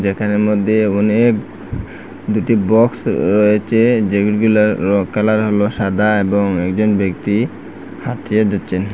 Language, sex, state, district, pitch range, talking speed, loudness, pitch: Bengali, male, Assam, Hailakandi, 100-110 Hz, 105 wpm, -15 LUFS, 105 Hz